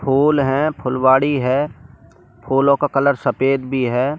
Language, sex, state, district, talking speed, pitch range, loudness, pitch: Hindi, male, Delhi, New Delhi, 145 wpm, 130-140 Hz, -17 LUFS, 135 Hz